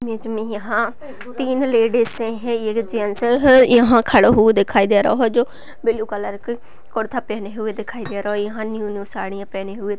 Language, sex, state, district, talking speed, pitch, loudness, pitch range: Hindi, female, Uttar Pradesh, Jyotiba Phule Nagar, 200 wpm, 225 Hz, -18 LUFS, 210-240 Hz